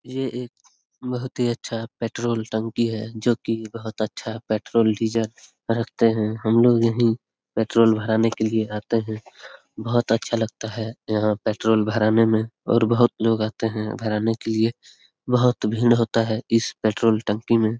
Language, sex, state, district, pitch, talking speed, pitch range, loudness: Hindi, male, Bihar, Lakhisarai, 115 Hz, 175 wpm, 110-115 Hz, -22 LUFS